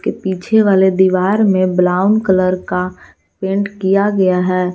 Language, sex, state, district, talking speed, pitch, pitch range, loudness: Hindi, female, Jharkhand, Garhwa, 140 wpm, 190 Hz, 185-200 Hz, -14 LUFS